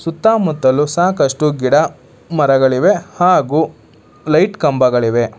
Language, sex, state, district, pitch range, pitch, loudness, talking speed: Kannada, male, Karnataka, Bangalore, 125-165 Hz, 145 Hz, -14 LUFS, 80 wpm